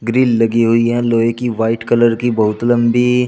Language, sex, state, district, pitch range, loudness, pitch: Hindi, male, Uttar Pradesh, Shamli, 115-120 Hz, -14 LUFS, 115 Hz